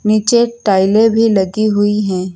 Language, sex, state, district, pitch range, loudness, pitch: Hindi, female, Uttar Pradesh, Lucknow, 195-225 Hz, -13 LUFS, 210 Hz